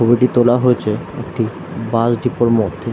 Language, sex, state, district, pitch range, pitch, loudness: Bengali, male, West Bengal, Dakshin Dinajpur, 115-120 Hz, 120 Hz, -16 LUFS